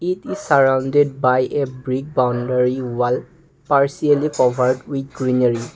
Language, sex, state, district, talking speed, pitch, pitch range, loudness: English, male, Assam, Kamrup Metropolitan, 125 wpm, 130 Hz, 125-145 Hz, -19 LUFS